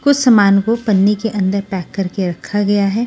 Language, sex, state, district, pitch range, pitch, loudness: Hindi, female, Maharashtra, Washim, 195-225 Hz, 205 Hz, -15 LUFS